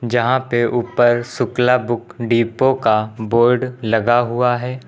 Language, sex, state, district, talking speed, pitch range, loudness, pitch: Hindi, male, Uttar Pradesh, Lucknow, 135 wpm, 115-125 Hz, -17 LUFS, 120 Hz